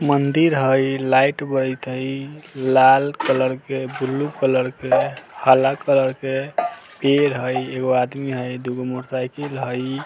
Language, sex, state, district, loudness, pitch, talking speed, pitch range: Bajjika, male, Bihar, Vaishali, -20 LUFS, 135 Hz, 135 wpm, 130-140 Hz